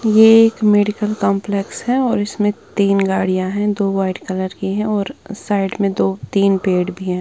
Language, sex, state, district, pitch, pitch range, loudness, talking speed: Hindi, female, Punjab, Kapurthala, 200 Hz, 190-210 Hz, -17 LUFS, 190 wpm